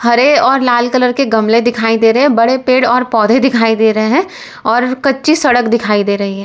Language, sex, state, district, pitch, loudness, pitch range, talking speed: Hindi, female, Uttar Pradesh, Lalitpur, 240 Hz, -11 LUFS, 225-260 Hz, 230 wpm